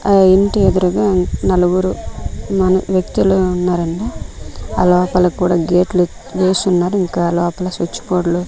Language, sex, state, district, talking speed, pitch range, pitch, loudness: Telugu, female, Andhra Pradesh, Manyam, 120 wpm, 180-190 Hz, 180 Hz, -15 LUFS